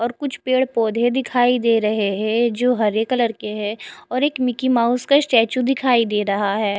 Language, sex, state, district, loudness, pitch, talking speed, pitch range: Hindi, female, Odisha, Khordha, -19 LUFS, 235 Hz, 205 wpm, 215-255 Hz